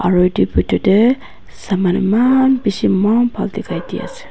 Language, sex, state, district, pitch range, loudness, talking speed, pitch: Nagamese, female, Nagaland, Dimapur, 180-235 Hz, -15 LUFS, 165 wpm, 205 Hz